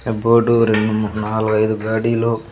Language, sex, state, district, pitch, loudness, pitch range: Telugu, male, Andhra Pradesh, Sri Satya Sai, 110 Hz, -17 LUFS, 110-115 Hz